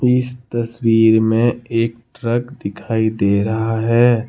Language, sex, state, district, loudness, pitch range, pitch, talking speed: Hindi, male, Jharkhand, Deoghar, -17 LUFS, 110-120 Hz, 115 Hz, 125 wpm